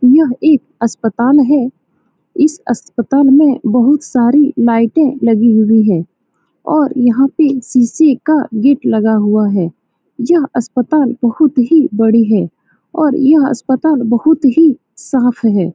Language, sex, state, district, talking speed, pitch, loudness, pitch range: Hindi, female, Bihar, Saran, 135 wpm, 260 Hz, -12 LUFS, 230-300 Hz